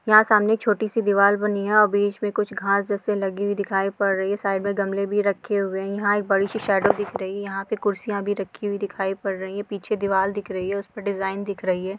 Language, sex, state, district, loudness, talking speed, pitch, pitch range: Hindi, female, Rajasthan, Churu, -23 LUFS, 270 wpm, 200 Hz, 195-205 Hz